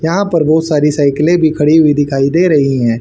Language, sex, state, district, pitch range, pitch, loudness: Hindi, male, Haryana, Charkhi Dadri, 140-160 Hz, 150 Hz, -11 LUFS